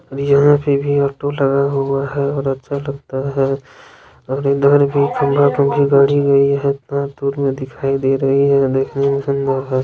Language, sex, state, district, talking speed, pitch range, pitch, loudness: Maithili, male, Bihar, Darbhanga, 150 wpm, 135-140 Hz, 140 Hz, -16 LUFS